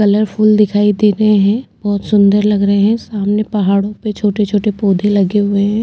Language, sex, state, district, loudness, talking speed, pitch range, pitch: Hindi, female, Uttarakhand, Tehri Garhwal, -13 LUFS, 175 wpm, 200-210 Hz, 205 Hz